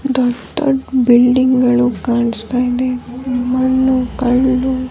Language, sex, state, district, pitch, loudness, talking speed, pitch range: Kannada, female, Karnataka, Dharwad, 250 Hz, -15 LUFS, 110 wpm, 245-260 Hz